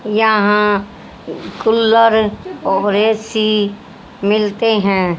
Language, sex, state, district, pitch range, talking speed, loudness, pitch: Hindi, female, Haryana, Jhajjar, 205-220 Hz, 70 wpm, -14 LUFS, 210 Hz